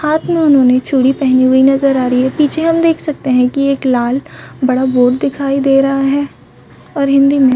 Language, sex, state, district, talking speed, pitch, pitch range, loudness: Hindi, female, Chhattisgarh, Raigarh, 215 wpm, 275 Hz, 260-285 Hz, -12 LUFS